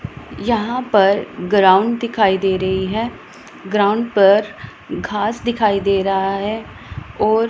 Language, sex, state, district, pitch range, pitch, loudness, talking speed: Hindi, female, Punjab, Pathankot, 195-225 Hz, 205 Hz, -17 LUFS, 120 wpm